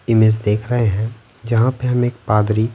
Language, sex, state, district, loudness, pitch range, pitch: Hindi, male, Bihar, Patna, -18 LUFS, 110-120 Hz, 115 Hz